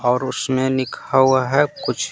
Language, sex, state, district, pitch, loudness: Hindi, male, Bihar, Patna, 130 Hz, -19 LUFS